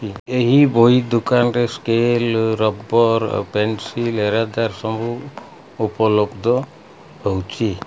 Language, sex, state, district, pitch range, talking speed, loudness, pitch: Odia, male, Odisha, Malkangiri, 110-120 Hz, 75 wpm, -18 LUFS, 115 Hz